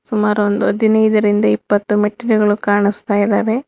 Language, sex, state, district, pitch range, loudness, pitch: Kannada, female, Karnataka, Bangalore, 205-220 Hz, -15 LUFS, 210 Hz